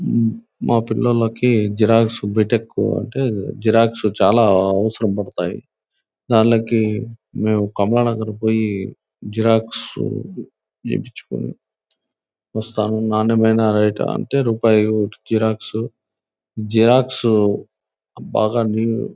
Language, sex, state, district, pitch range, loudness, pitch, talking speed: Telugu, male, Andhra Pradesh, Anantapur, 105-115 Hz, -18 LUFS, 110 Hz, 90 wpm